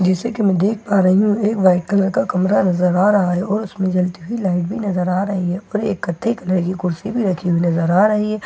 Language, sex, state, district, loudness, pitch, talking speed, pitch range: Hindi, female, Bihar, Katihar, -18 LUFS, 190 Hz, 260 wpm, 180-210 Hz